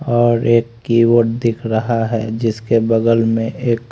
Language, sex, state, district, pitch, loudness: Hindi, male, Haryana, Rohtak, 115 Hz, -16 LUFS